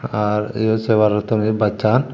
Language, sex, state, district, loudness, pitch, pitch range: Chakma, male, Tripura, Dhalai, -18 LUFS, 110 Hz, 105-110 Hz